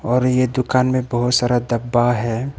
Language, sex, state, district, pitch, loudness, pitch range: Hindi, male, Arunachal Pradesh, Papum Pare, 125 Hz, -18 LUFS, 120-130 Hz